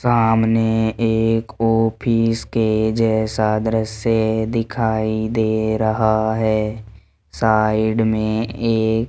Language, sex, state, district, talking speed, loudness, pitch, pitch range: Hindi, male, Rajasthan, Jaipur, 90 wpm, -18 LUFS, 110 Hz, 110-115 Hz